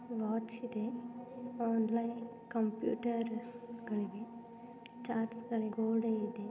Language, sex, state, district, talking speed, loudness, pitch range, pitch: Kannada, female, Karnataka, Dharwad, 65 wpm, -38 LUFS, 225-235 Hz, 230 Hz